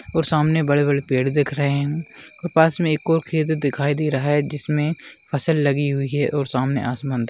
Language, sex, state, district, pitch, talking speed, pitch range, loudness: Hindi, male, Bihar, Madhepura, 145 Hz, 215 wpm, 140-155 Hz, -21 LUFS